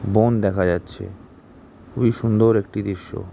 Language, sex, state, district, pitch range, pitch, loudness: Bengali, male, West Bengal, Jhargram, 95-115 Hz, 105 Hz, -20 LUFS